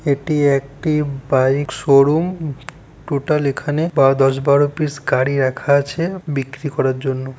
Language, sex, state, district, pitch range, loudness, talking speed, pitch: Bengali, male, West Bengal, Purulia, 135-150 Hz, -17 LUFS, 140 wpm, 140 Hz